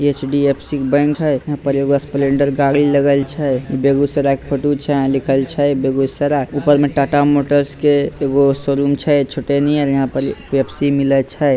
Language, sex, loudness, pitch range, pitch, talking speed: Bhojpuri, male, -16 LUFS, 135-145 Hz, 140 Hz, 170 wpm